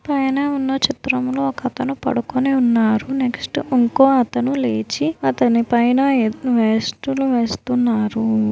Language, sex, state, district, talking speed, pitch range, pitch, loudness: Telugu, female, Andhra Pradesh, Visakhapatnam, 90 wpm, 230-270 Hz, 250 Hz, -18 LUFS